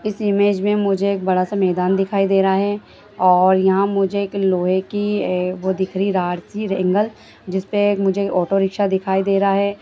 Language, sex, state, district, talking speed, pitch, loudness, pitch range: Hindi, female, Bihar, Darbhanga, 210 wpm, 195 Hz, -18 LUFS, 190-200 Hz